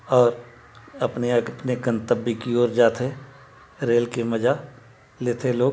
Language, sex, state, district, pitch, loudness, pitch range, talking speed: Chhattisgarhi, male, Chhattisgarh, Sarguja, 120 Hz, -23 LUFS, 120-130 Hz, 125 wpm